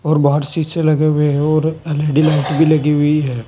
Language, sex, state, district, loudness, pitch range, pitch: Hindi, male, Uttar Pradesh, Saharanpur, -15 LUFS, 150-155 Hz, 150 Hz